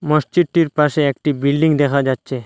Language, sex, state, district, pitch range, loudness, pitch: Bengali, male, Assam, Hailakandi, 140-155 Hz, -16 LUFS, 150 Hz